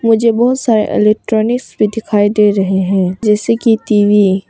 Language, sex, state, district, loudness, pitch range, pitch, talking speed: Hindi, female, Arunachal Pradesh, Papum Pare, -12 LUFS, 205-225 Hz, 215 Hz, 185 wpm